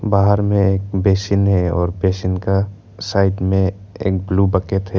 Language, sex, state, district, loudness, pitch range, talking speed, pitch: Hindi, male, Arunachal Pradesh, Lower Dibang Valley, -17 LUFS, 95-100 Hz, 180 wpm, 95 Hz